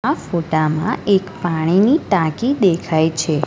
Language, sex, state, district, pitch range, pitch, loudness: Gujarati, female, Gujarat, Valsad, 160-195 Hz, 175 Hz, -17 LUFS